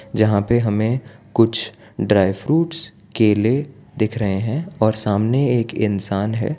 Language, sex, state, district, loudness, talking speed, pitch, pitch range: Hindi, male, Gujarat, Valsad, -19 LUFS, 135 wpm, 110 Hz, 105-125 Hz